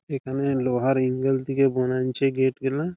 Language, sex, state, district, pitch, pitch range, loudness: Bengali, male, West Bengal, Malda, 135 Hz, 130-135 Hz, -24 LUFS